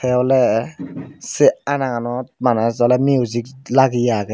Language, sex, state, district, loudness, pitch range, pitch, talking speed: Chakma, male, Tripura, Dhalai, -17 LUFS, 120-130 Hz, 125 Hz, 110 wpm